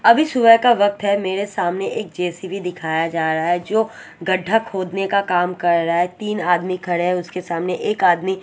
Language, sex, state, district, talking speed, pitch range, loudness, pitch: Hindi, female, Odisha, Sambalpur, 205 wpm, 175-200 Hz, -19 LUFS, 185 Hz